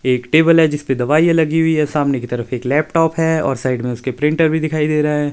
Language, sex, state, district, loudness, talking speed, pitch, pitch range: Hindi, male, Himachal Pradesh, Shimla, -16 LUFS, 270 wpm, 150 Hz, 130-160 Hz